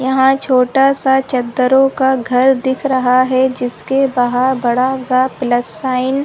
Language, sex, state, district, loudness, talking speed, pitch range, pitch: Hindi, female, Chhattisgarh, Sarguja, -14 LUFS, 155 wpm, 250-265 Hz, 260 Hz